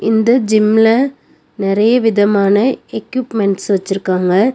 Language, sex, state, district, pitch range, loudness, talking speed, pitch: Tamil, female, Tamil Nadu, Nilgiris, 195-230 Hz, -14 LUFS, 80 wpm, 215 Hz